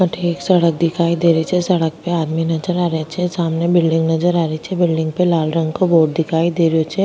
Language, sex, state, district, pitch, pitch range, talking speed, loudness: Rajasthani, female, Rajasthan, Nagaur, 170 Hz, 160-175 Hz, 255 wpm, -17 LUFS